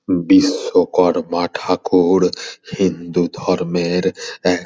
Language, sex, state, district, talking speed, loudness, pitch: Bengali, male, West Bengal, Purulia, 75 wpm, -17 LUFS, 90 Hz